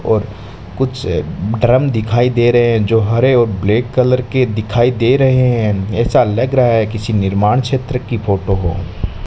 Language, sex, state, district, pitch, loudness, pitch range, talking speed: Hindi, male, Rajasthan, Bikaner, 115 Hz, -14 LUFS, 105-125 Hz, 175 wpm